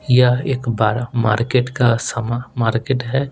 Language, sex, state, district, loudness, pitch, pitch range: Hindi, male, Bihar, Patna, -18 LUFS, 120 Hz, 115-125 Hz